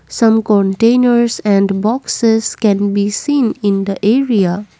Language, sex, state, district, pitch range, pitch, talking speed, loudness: English, female, Assam, Kamrup Metropolitan, 200-230 Hz, 215 Hz, 125 wpm, -13 LUFS